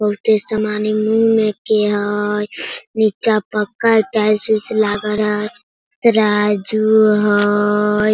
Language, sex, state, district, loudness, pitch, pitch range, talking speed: Hindi, female, Bihar, Sitamarhi, -16 LUFS, 215 Hz, 210-220 Hz, 105 wpm